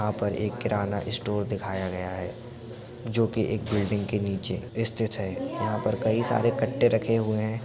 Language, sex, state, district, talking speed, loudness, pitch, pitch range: Hindi, male, Uttar Pradesh, Budaun, 180 wpm, -26 LUFS, 110 Hz, 100-115 Hz